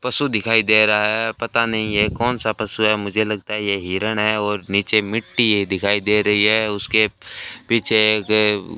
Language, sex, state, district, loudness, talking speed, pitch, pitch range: Hindi, male, Rajasthan, Bikaner, -18 LUFS, 205 wpm, 110 Hz, 105-110 Hz